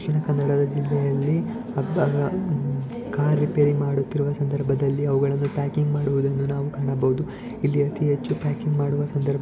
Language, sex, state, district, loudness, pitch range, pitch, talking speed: Kannada, male, Karnataka, Dakshina Kannada, -24 LUFS, 140-145 Hz, 145 Hz, 120 wpm